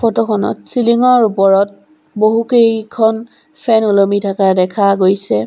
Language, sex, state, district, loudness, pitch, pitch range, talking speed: Assamese, female, Assam, Sonitpur, -13 LUFS, 220 Hz, 195-235 Hz, 110 wpm